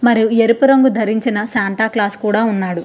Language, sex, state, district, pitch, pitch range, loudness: Telugu, female, Andhra Pradesh, Krishna, 220 Hz, 210-240 Hz, -15 LUFS